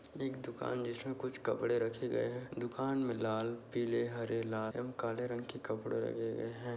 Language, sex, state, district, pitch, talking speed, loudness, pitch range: Hindi, male, Uttar Pradesh, Budaun, 120 Hz, 195 wpm, -38 LUFS, 115-125 Hz